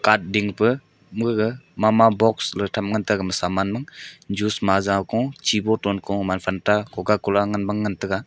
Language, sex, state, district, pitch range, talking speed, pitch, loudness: Wancho, male, Arunachal Pradesh, Longding, 100-110 Hz, 190 wpm, 105 Hz, -22 LUFS